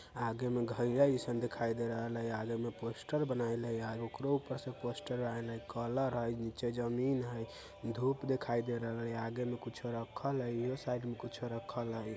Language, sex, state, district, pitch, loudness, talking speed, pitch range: Bajjika, male, Bihar, Vaishali, 120 Hz, -38 LUFS, 190 wpm, 115-125 Hz